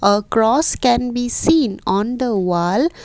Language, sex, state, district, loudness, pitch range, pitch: English, female, Assam, Kamrup Metropolitan, -17 LUFS, 200-250 Hz, 230 Hz